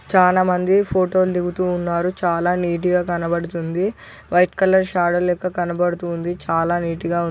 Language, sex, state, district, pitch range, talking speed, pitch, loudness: Telugu, male, Telangana, Nalgonda, 170-185 Hz, 170 wpm, 175 Hz, -19 LUFS